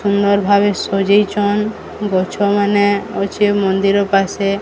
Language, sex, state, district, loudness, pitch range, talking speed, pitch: Odia, female, Odisha, Sambalpur, -15 LUFS, 195-205 Hz, 105 wpm, 200 Hz